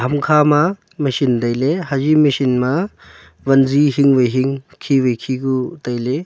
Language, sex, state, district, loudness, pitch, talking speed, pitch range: Wancho, male, Arunachal Pradesh, Longding, -16 LUFS, 135 Hz, 155 wpm, 125-150 Hz